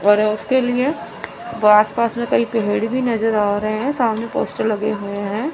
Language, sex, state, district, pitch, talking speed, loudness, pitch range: Hindi, female, Chandigarh, Chandigarh, 225 Hz, 195 wpm, -18 LUFS, 210-235 Hz